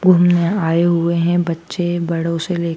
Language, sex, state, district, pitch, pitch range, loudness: Hindi, female, Madhya Pradesh, Dhar, 170 Hz, 170-175 Hz, -17 LUFS